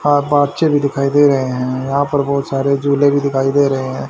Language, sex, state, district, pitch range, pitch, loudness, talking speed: Hindi, male, Haryana, Rohtak, 135-145 Hz, 140 Hz, -15 LUFS, 220 wpm